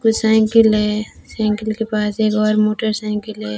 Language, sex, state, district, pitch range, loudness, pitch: Hindi, female, Rajasthan, Jaisalmer, 210-220 Hz, -17 LUFS, 215 Hz